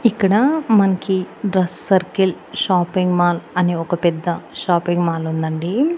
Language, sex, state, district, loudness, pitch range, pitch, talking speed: Telugu, female, Andhra Pradesh, Annamaya, -18 LUFS, 175-195 Hz, 180 Hz, 120 wpm